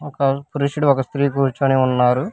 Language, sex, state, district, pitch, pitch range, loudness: Telugu, male, Telangana, Hyderabad, 140 Hz, 130-140 Hz, -18 LUFS